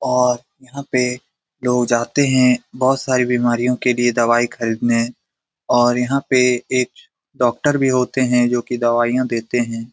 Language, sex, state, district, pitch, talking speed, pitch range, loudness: Hindi, male, Bihar, Lakhisarai, 125 Hz, 165 wpm, 120-130 Hz, -18 LUFS